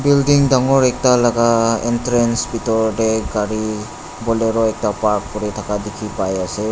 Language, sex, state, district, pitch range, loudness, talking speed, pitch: Nagamese, male, Nagaland, Dimapur, 105-120 Hz, -17 LUFS, 145 wpm, 110 Hz